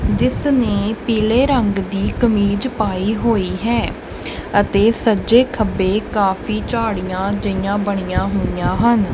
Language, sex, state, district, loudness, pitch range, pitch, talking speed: Punjabi, male, Punjab, Kapurthala, -17 LUFS, 195-230 Hz, 210 Hz, 120 wpm